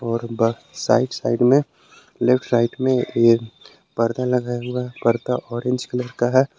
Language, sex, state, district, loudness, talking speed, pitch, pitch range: Hindi, male, Jharkhand, Palamu, -20 LUFS, 165 wpm, 120 Hz, 115-125 Hz